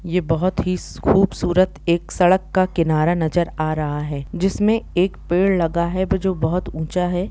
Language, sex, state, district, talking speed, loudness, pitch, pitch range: Hindi, female, Jharkhand, Jamtara, 150 wpm, -20 LUFS, 180 Hz, 165-185 Hz